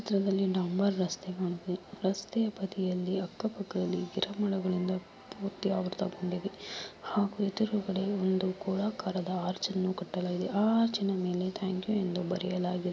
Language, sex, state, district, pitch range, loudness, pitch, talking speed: Kannada, female, Karnataka, Mysore, 185-200 Hz, -32 LUFS, 190 Hz, 110 wpm